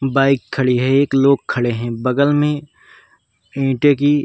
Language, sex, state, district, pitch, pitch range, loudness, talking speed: Hindi, male, Uttar Pradesh, Varanasi, 135 Hz, 125-140 Hz, -16 LUFS, 170 wpm